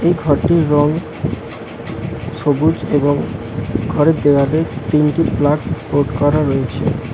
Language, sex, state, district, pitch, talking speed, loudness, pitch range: Bengali, male, West Bengal, Alipurduar, 145 Hz, 100 wpm, -16 LUFS, 135-155 Hz